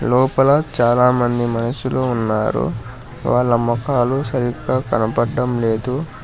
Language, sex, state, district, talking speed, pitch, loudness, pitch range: Telugu, male, Telangana, Hyderabad, 85 wpm, 125 Hz, -18 LUFS, 120-130 Hz